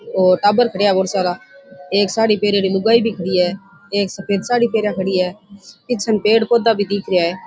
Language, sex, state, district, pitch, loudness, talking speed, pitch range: Rajasthani, female, Rajasthan, Churu, 200 Hz, -17 LUFS, 210 wpm, 185-220 Hz